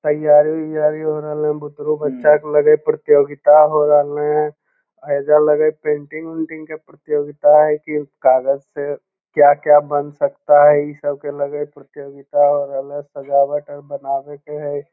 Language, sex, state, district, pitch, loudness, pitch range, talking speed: Magahi, male, Bihar, Lakhisarai, 150 Hz, -16 LUFS, 145-150 Hz, 175 wpm